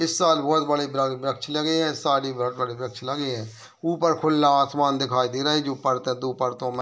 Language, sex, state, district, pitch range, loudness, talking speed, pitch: Hindi, male, Bihar, Muzaffarpur, 130-150 Hz, -24 LUFS, 235 wpm, 135 Hz